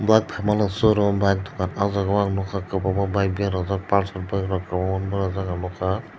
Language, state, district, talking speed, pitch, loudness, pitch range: Kokborok, Tripura, Dhalai, 215 wpm, 100 Hz, -23 LUFS, 95-100 Hz